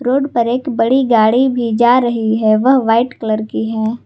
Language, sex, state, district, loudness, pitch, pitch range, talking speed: Hindi, female, Jharkhand, Garhwa, -14 LUFS, 235 Hz, 225-255 Hz, 205 wpm